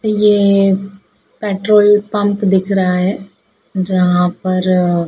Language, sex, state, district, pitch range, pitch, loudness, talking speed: Hindi, female, Madhya Pradesh, Dhar, 185-205 Hz, 195 Hz, -14 LUFS, 85 wpm